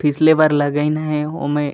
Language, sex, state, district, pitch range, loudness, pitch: Chhattisgarhi, male, Chhattisgarh, Raigarh, 145-155 Hz, -17 LUFS, 150 Hz